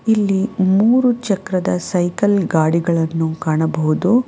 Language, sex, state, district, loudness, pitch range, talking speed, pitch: Kannada, female, Karnataka, Bangalore, -17 LUFS, 165-205 Hz, 85 wpm, 185 Hz